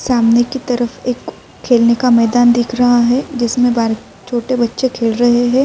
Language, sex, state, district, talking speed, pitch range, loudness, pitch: Urdu, female, Uttar Pradesh, Budaun, 180 wpm, 235-250 Hz, -14 LUFS, 240 Hz